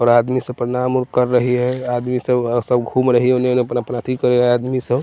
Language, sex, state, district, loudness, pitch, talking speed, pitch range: Hindi, male, Bihar, West Champaran, -17 LUFS, 125 Hz, 250 wpm, 120-125 Hz